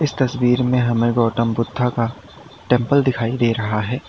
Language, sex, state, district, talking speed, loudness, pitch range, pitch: Hindi, male, Uttar Pradesh, Lalitpur, 175 wpm, -19 LUFS, 115-125 Hz, 120 Hz